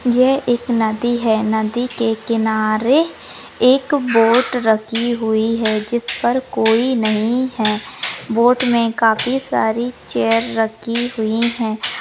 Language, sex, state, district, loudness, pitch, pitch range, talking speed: Hindi, female, Maharashtra, Pune, -17 LUFS, 230 Hz, 220-245 Hz, 125 wpm